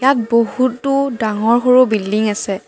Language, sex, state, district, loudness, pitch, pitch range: Assamese, female, Assam, Kamrup Metropolitan, -15 LUFS, 235 Hz, 215-255 Hz